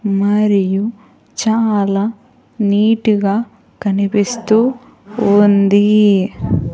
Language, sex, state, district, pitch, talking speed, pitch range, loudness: Telugu, female, Andhra Pradesh, Sri Satya Sai, 210 Hz, 55 wpm, 200-225 Hz, -14 LUFS